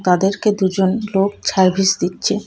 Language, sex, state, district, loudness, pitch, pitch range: Bengali, female, West Bengal, Cooch Behar, -17 LUFS, 195 Hz, 190-200 Hz